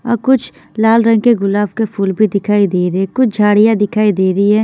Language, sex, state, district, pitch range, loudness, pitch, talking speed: Hindi, female, Bihar, Patna, 200-225 Hz, -13 LUFS, 210 Hz, 245 wpm